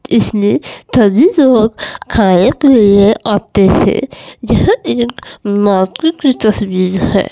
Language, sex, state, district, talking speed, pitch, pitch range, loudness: Hindi, female, Chandigarh, Chandigarh, 115 wpm, 215 Hz, 200-260 Hz, -11 LUFS